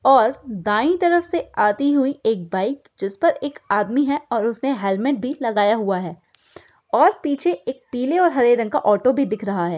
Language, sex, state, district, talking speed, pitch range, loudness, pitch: Hindi, female, Uttar Pradesh, Gorakhpur, 200 wpm, 210-285 Hz, -20 LUFS, 250 Hz